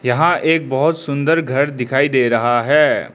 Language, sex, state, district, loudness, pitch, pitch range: Hindi, male, Arunachal Pradesh, Lower Dibang Valley, -16 LUFS, 140 Hz, 125-160 Hz